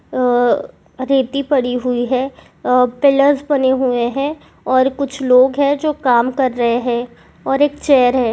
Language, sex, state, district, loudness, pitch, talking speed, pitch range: Hindi, female, Jharkhand, Jamtara, -15 LUFS, 260 Hz, 160 wpm, 250-280 Hz